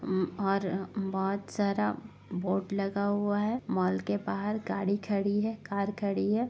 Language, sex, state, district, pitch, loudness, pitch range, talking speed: Hindi, female, Bihar, Gopalganj, 200 Hz, -31 LUFS, 190-205 Hz, 155 wpm